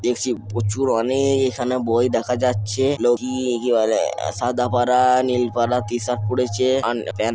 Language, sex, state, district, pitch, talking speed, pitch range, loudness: Bengali, male, West Bengal, Kolkata, 125 Hz, 140 wpm, 115-125 Hz, -20 LUFS